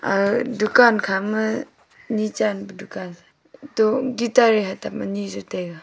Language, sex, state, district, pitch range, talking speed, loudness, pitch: Wancho, female, Arunachal Pradesh, Longding, 190-230 Hz, 155 wpm, -21 LUFS, 215 Hz